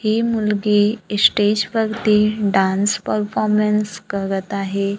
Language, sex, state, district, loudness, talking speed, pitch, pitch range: Marathi, female, Maharashtra, Gondia, -18 LUFS, 95 wpm, 210 Hz, 200-215 Hz